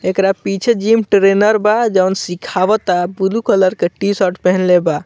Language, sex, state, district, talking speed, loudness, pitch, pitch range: Bhojpuri, male, Bihar, Muzaffarpur, 155 wpm, -14 LUFS, 195 Hz, 185-210 Hz